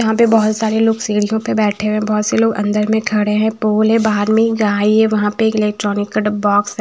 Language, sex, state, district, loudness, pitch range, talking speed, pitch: Hindi, female, Himachal Pradesh, Shimla, -15 LUFS, 210-220 Hz, 275 wpm, 215 Hz